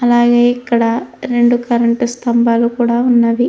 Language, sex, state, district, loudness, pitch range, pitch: Telugu, female, Andhra Pradesh, Krishna, -13 LUFS, 235-240 Hz, 240 Hz